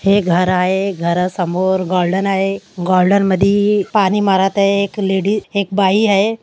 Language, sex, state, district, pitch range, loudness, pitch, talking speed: Marathi, female, Maharashtra, Aurangabad, 185-200 Hz, -15 LUFS, 195 Hz, 150 wpm